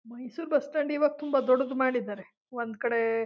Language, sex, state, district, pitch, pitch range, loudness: Kannada, female, Karnataka, Mysore, 255 Hz, 235-290 Hz, -28 LUFS